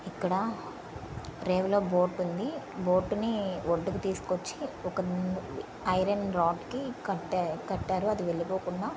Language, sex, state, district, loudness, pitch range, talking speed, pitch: Telugu, female, Andhra Pradesh, Srikakulam, -31 LUFS, 180-200 Hz, 120 wpm, 185 Hz